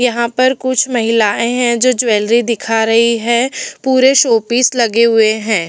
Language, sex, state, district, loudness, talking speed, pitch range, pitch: Hindi, female, Delhi, New Delhi, -12 LUFS, 170 wpm, 225-255 Hz, 235 Hz